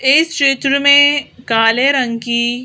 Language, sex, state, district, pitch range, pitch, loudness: Hindi, female, Madhya Pradesh, Bhopal, 235-280 Hz, 270 Hz, -13 LUFS